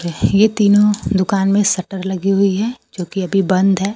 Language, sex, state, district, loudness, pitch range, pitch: Hindi, female, Bihar, Kaimur, -16 LUFS, 190-205 Hz, 195 Hz